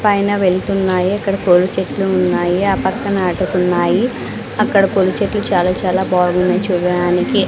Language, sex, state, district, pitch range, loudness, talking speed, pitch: Telugu, female, Andhra Pradesh, Sri Satya Sai, 180-195 Hz, -15 LUFS, 120 wpm, 185 Hz